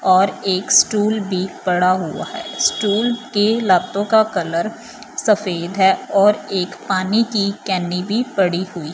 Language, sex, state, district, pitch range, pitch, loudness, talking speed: Hindi, female, Punjab, Fazilka, 185-215 Hz, 195 Hz, -18 LUFS, 145 wpm